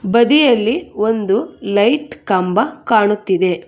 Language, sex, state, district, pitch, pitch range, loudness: Kannada, female, Karnataka, Bangalore, 215 Hz, 200-240 Hz, -15 LUFS